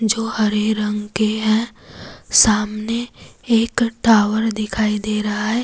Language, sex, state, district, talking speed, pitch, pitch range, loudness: Hindi, female, Jharkhand, Deoghar, 125 wpm, 215 Hz, 210-225 Hz, -18 LUFS